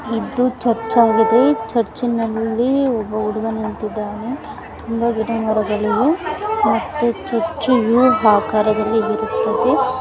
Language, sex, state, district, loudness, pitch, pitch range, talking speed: Kannada, female, Karnataka, Mysore, -18 LUFS, 225 Hz, 220-245 Hz, 95 wpm